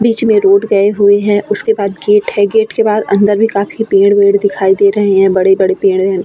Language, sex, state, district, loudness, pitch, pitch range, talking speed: Hindi, female, Bihar, Vaishali, -11 LUFS, 205 Hz, 195-220 Hz, 230 wpm